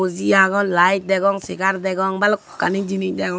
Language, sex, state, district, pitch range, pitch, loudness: Chakma, female, Tripura, Unakoti, 190-195 Hz, 190 Hz, -18 LUFS